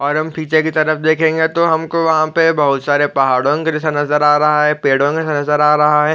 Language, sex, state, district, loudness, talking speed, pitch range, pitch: Hindi, male, Chhattisgarh, Raigarh, -14 LUFS, 245 wpm, 145-160 Hz, 150 Hz